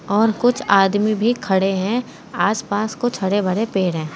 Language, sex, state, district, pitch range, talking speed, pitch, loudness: Hindi, female, Uttar Pradesh, Saharanpur, 190-225 Hz, 190 wpm, 205 Hz, -19 LUFS